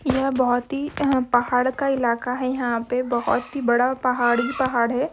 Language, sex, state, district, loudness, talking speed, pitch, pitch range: Hindi, female, Maharashtra, Dhule, -22 LUFS, 185 wpm, 250 Hz, 245-265 Hz